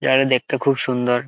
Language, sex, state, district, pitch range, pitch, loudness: Bengali, male, West Bengal, Jalpaiguri, 125-135 Hz, 130 Hz, -19 LUFS